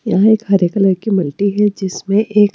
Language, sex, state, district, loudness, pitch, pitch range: Hindi, female, Punjab, Kapurthala, -15 LUFS, 200 Hz, 190-210 Hz